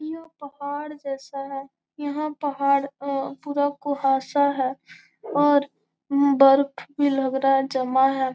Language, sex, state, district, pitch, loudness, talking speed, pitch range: Hindi, female, Bihar, Gopalganj, 280 Hz, -23 LUFS, 130 wpm, 270-285 Hz